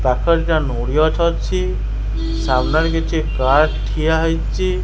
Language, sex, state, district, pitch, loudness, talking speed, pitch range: Odia, male, Odisha, Khordha, 135 Hz, -18 LUFS, 110 wpm, 110-160 Hz